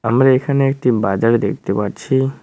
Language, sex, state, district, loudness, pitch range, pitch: Bengali, male, West Bengal, Cooch Behar, -16 LUFS, 115-135 Hz, 130 Hz